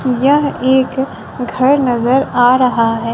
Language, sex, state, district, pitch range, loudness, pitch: Hindi, female, Bihar, West Champaran, 245-265 Hz, -13 LUFS, 255 Hz